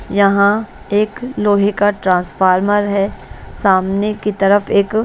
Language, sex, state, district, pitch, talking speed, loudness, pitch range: Hindi, female, Bihar, West Champaran, 200 Hz, 120 wpm, -15 LUFS, 195-210 Hz